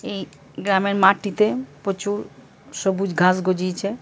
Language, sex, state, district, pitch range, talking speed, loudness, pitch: Bengali, male, Jharkhand, Jamtara, 185-200 Hz, 120 wpm, -21 LUFS, 195 Hz